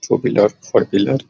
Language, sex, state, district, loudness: Hindi, male, Bihar, Araria, -17 LUFS